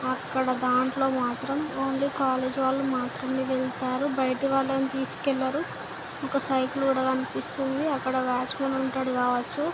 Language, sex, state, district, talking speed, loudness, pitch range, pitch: Telugu, female, Andhra Pradesh, Guntur, 105 wpm, -27 LUFS, 260-275 Hz, 265 Hz